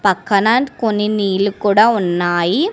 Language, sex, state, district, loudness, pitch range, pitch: Telugu, female, Telangana, Hyderabad, -15 LUFS, 195-225 Hz, 205 Hz